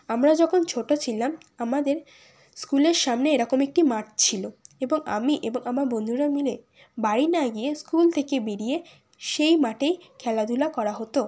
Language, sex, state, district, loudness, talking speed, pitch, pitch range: Bengali, female, West Bengal, Kolkata, -24 LUFS, 155 wpm, 275 Hz, 235-300 Hz